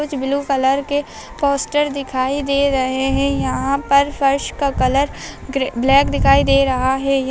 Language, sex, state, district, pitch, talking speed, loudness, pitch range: Hindi, female, Andhra Pradesh, Anantapur, 275 Hz, 150 wpm, -17 LUFS, 265-280 Hz